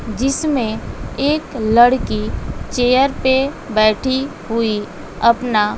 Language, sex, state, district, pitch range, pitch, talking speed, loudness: Hindi, female, Bihar, West Champaran, 220-270 Hz, 245 Hz, 85 wpm, -17 LUFS